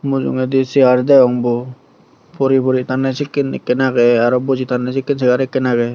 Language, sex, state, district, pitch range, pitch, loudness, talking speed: Chakma, male, Tripura, Dhalai, 125-135 Hz, 130 Hz, -15 LUFS, 170 wpm